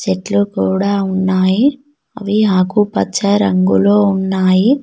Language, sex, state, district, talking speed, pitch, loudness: Telugu, female, Telangana, Mahabubabad, 85 wpm, 190 Hz, -14 LUFS